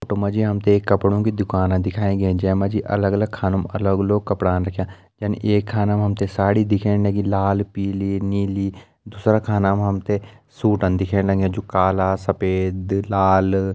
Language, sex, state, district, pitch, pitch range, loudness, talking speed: Hindi, male, Uttarakhand, Uttarkashi, 100 Hz, 95-105 Hz, -20 LUFS, 200 wpm